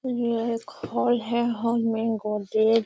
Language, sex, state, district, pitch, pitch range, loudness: Magahi, female, Bihar, Gaya, 230 Hz, 220-235 Hz, -25 LUFS